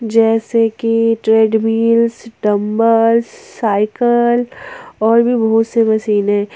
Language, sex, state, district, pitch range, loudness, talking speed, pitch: Hindi, female, Jharkhand, Ranchi, 220-230 Hz, -14 LUFS, 90 wpm, 225 Hz